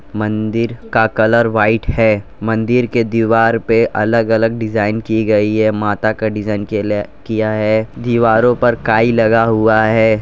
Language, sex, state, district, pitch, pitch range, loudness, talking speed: Hindi, male, Gujarat, Valsad, 110 Hz, 110-115 Hz, -14 LUFS, 160 wpm